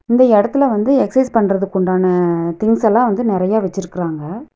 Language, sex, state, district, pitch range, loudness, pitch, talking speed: Tamil, female, Tamil Nadu, Nilgiris, 185-235 Hz, -15 LUFS, 205 Hz, 145 wpm